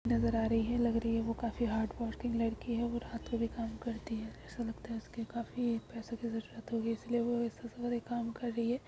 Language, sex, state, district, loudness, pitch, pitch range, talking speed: Magahi, female, Bihar, Gaya, -36 LUFS, 235 Hz, 230-235 Hz, 265 wpm